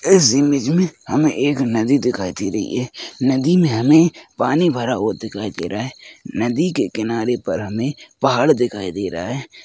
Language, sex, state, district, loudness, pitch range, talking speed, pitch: Hindi, female, Rajasthan, Nagaur, -18 LUFS, 110-150 Hz, 175 wpm, 125 Hz